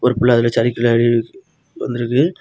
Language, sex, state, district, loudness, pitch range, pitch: Tamil, male, Tamil Nadu, Kanyakumari, -16 LUFS, 120-140 Hz, 120 Hz